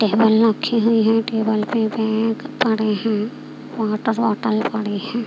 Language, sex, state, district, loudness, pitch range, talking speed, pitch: Hindi, female, Bihar, Katihar, -19 LUFS, 215-225 Hz, 150 wpm, 225 Hz